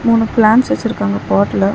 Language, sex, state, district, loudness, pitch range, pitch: Tamil, female, Tamil Nadu, Chennai, -14 LUFS, 195-230 Hz, 215 Hz